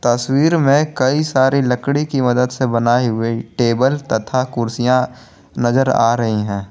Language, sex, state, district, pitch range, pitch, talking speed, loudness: Hindi, male, Jharkhand, Garhwa, 115-135 Hz, 125 Hz, 150 wpm, -16 LUFS